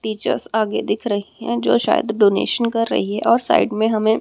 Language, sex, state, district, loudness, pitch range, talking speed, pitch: Hindi, female, Haryana, Rohtak, -19 LUFS, 205-225 Hz, 215 wpm, 215 Hz